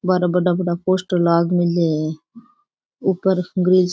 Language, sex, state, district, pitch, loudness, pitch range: Rajasthani, female, Rajasthan, Churu, 180 Hz, -19 LUFS, 175-185 Hz